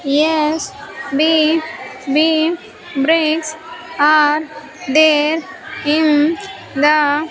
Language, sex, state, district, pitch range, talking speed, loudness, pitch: English, female, Andhra Pradesh, Sri Satya Sai, 300-325 Hz, 55 wpm, -15 LUFS, 310 Hz